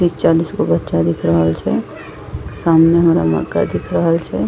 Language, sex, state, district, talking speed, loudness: Maithili, female, Bihar, Madhepura, 160 wpm, -15 LUFS